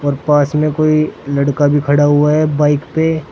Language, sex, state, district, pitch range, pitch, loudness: Hindi, male, Uttar Pradesh, Saharanpur, 145-155 Hz, 150 Hz, -13 LUFS